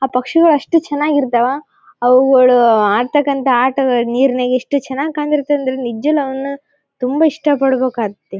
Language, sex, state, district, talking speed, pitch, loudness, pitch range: Kannada, female, Karnataka, Bellary, 150 wpm, 270 Hz, -14 LUFS, 250-290 Hz